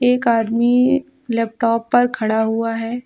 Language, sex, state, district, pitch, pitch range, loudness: Hindi, female, Uttar Pradesh, Lucknow, 235 Hz, 230-250 Hz, -18 LUFS